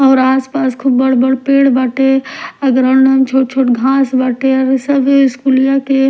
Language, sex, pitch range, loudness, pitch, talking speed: Bhojpuri, female, 260-270 Hz, -12 LUFS, 265 Hz, 175 wpm